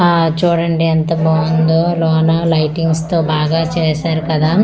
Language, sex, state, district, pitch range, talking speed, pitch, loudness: Telugu, female, Andhra Pradesh, Manyam, 160-165 Hz, 130 wpm, 165 Hz, -14 LUFS